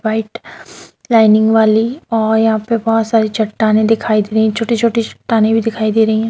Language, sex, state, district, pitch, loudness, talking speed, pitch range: Hindi, female, Bihar, Darbhanga, 220 Hz, -14 LUFS, 190 wpm, 220-225 Hz